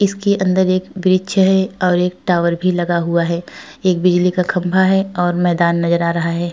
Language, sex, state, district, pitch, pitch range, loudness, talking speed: Hindi, female, Uttar Pradesh, Etah, 180 Hz, 175-190 Hz, -16 LUFS, 210 wpm